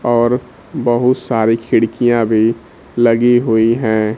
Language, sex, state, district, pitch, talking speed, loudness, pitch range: Hindi, male, Bihar, Kaimur, 115 Hz, 115 wpm, -14 LUFS, 110-120 Hz